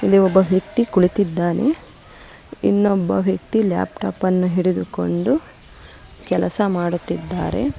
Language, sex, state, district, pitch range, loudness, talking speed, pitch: Kannada, female, Karnataka, Bangalore, 175-200 Hz, -19 LUFS, 85 wpm, 185 Hz